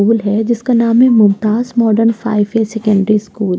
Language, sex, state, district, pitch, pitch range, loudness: Hindi, female, Uttar Pradesh, Jyotiba Phule Nagar, 220 Hz, 210-230 Hz, -13 LUFS